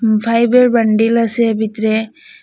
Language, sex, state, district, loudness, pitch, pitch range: Bengali, female, Assam, Hailakandi, -14 LUFS, 225 Hz, 220-235 Hz